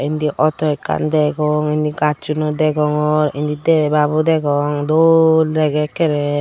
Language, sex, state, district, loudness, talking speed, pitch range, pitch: Chakma, female, Tripura, Dhalai, -16 LUFS, 120 wpm, 150-155 Hz, 150 Hz